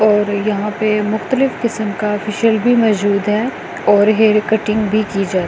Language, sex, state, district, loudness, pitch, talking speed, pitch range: Hindi, female, Delhi, New Delhi, -15 LUFS, 215 Hz, 185 wpm, 205-220 Hz